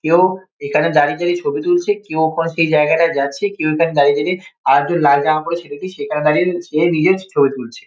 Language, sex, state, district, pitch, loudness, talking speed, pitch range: Bengali, male, West Bengal, Kolkata, 165 Hz, -16 LUFS, 205 wpm, 145-180 Hz